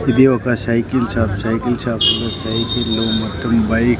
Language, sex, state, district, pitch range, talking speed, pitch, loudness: Telugu, male, Andhra Pradesh, Sri Satya Sai, 110-120 Hz, 150 wpm, 115 Hz, -17 LUFS